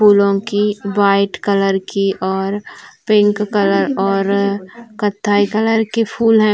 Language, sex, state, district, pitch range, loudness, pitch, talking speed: Hindi, female, Chhattisgarh, Bilaspur, 195-210 Hz, -16 LUFS, 205 Hz, 130 wpm